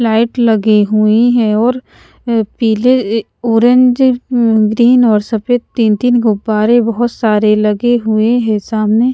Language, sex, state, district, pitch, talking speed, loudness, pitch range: Hindi, female, Punjab, Pathankot, 230 Hz, 145 wpm, -12 LUFS, 215-240 Hz